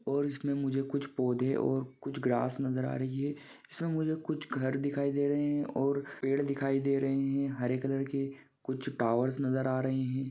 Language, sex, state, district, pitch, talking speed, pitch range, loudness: Hindi, male, Maharashtra, Sindhudurg, 135 Hz, 210 wpm, 130-140 Hz, -32 LUFS